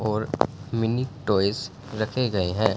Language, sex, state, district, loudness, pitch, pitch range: Hindi, male, Punjab, Fazilka, -26 LUFS, 110 Hz, 105-125 Hz